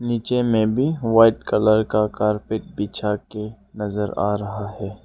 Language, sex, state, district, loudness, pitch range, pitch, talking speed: Hindi, male, Arunachal Pradesh, Lower Dibang Valley, -21 LUFS, 105-115 Hz, 105 Hz, 155 wpm